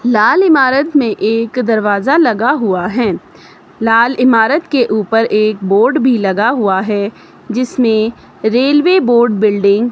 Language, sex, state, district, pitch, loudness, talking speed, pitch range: Hindi, female, Himachal Pradesh, Shimla, 230 Hz, -12 LUFS, 140 wpm, 215-255 Hz